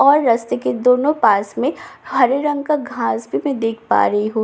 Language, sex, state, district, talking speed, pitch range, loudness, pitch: Hindi, female, Bihar, Katihar, 230 wpm, 220-285 Hz, -17 LUFS, 250 Hz